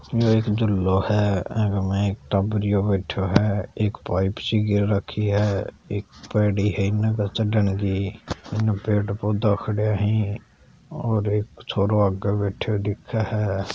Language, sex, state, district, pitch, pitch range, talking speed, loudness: Hindi, male, Rajasthan, Churu, 105 Hz, 100-105 Hz, 125 wpm, -23 LUFS